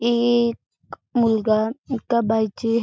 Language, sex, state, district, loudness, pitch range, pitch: Marathi, female, Maharashtra, Chandrapur, -21 LUFS, 220-235 Hz, 230 Hz